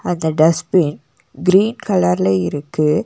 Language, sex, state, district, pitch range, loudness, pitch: Tamil, female, Tamil Nadu, Nilgiris, 145-185 Hz, -16 LUFS, 160 Hz